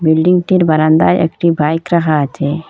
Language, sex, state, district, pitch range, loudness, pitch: Bengali, female, Assam, Hailakandi, 155-170 Hz, -13 LUFS, 160 Hz